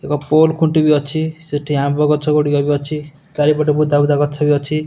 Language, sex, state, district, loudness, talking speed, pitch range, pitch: Odia, male, Odisha, Nuapada, -16 LUFS, 210 wpm, 145-155 Hz, 150 Hz